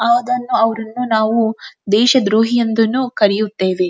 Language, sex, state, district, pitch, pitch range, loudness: Kannada, female, Karnataka, Dharwad, 225 Hz, 215-240 Hz, -15 LUFS